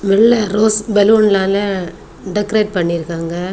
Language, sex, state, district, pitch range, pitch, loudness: Tamil, female, Tamil Nadu, Kanyakumari, 180-215 Hz, 200 Hz, -14 LUFS